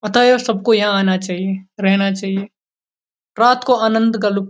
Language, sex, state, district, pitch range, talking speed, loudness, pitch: Hindi, male, Uttarakhand, Uttarkashi, 195-225 Hz, 175 wpm, -16 LUFS, 205 Hz